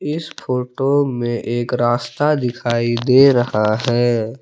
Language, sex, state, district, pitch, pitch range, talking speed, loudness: Hindi, male, Jharkhand, Palamu, 120 Hz, 120-135 Hz, 120 wpm, -17 LUFS